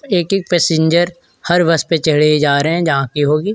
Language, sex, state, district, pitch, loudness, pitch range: Hindi, male, Bihar, Vaishali, 165 Hz, -14 LUFS, 150-175 Hz